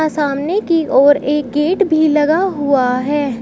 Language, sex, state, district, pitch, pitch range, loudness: Hindi, female, Uttar Pradesh, Shamli, 295 Hz, 280-320 Hz, -14 LUFS